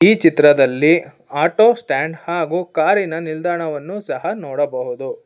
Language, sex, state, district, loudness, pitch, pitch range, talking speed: Kannada, female, Karnataka, Bangalore, -17 LUFS, 165 Hz, 155-205 Hz, 100 wpm